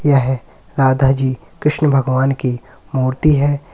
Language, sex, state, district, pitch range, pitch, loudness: Hindi, male, Uttar Pradesh, Lalitpur, 130-145 Hz, 135 Hz, -16 LUFS